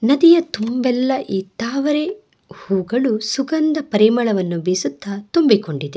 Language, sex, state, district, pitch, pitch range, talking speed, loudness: Kannada, female, Karnataka, Bangalore, 235 Hz, 195-290 Hz, 100 wpm, -18 LUFS